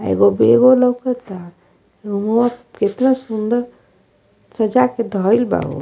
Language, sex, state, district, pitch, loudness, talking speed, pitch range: Bhojpuri, female, Uttar Pradesh, Ghazipur, 225 Hz, -16 LUFS, 125 wpm, 200-245 Hz